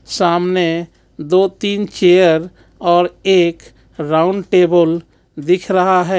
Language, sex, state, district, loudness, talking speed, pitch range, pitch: Hindi, male, Jharkhand, Ranchi, -14 LUFS, 105 wpm, 170-185 Hz, 180 Hz